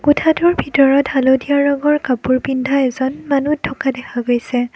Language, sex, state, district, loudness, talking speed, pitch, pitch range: Assamese, female, Assam, Kamrup Metropolitan, -16 LUFS, 140 wpm, 270 Hz, 260-285 Hz